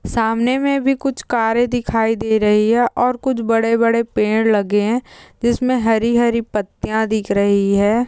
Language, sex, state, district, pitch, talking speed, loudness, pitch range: Hindi, female, Andhra Pradesh, Chittoor, 230 Hz, 155 wpm, -17 LUFS, 220-245 Hz